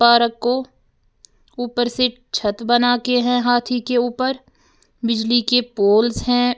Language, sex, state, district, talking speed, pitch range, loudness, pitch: Hindi, female, Uttar Pradesh, Lalitpur, 130 wpm, 235-245 Hz, -18 LUFS, 245 Hz